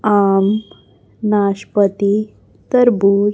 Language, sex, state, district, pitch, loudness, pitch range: Hindi, male, Chhattisgarh, Raipur, 205 Hz, -15 LUFS, 200-215 Hz